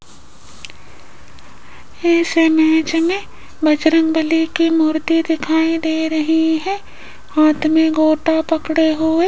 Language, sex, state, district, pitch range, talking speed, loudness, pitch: Hindi, female, Rajasthan, Jaipur, 315-330 Hz, 105 wpm, -16 LUFS, 320 Hz